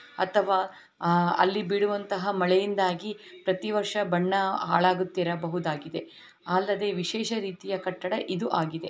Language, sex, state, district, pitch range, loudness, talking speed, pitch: Kannada, female, Karnataka, Belgaum, 180-205 Hz, -27 LUFS, 100 wpm, 185 Hz